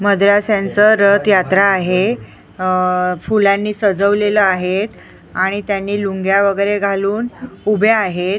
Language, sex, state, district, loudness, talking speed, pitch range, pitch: Marathi, female, Maharashtra, Mumbai Suburban, -15 LUFS, 100 wpm, 190-205 Hz, 200 Hz